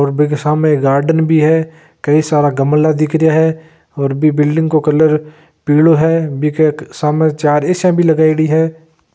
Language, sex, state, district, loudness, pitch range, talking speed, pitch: Marwari, male, Rajasthan, Nagaur, -13 LUFS, 150-160 Hz, 185 wpm, 155 Hz